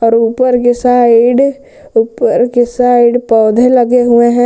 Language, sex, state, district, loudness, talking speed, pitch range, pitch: Hindi, male, Jharkhand, Garhwa, -10 LUFS, 150 wpm, 235-250 Hz, 245 Hz